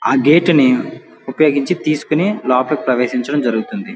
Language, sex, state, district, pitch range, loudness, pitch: Telugu, male, Andhra Pradesh, Guntur, 130-180 Hz, -15 LUFS, 155 Hz